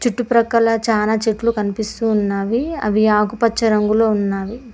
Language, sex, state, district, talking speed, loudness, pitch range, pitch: Telugu, female, Telangana, Mahabubabad, 115 wpm, -17 LUFS, 210-230 Hz, 220 Hz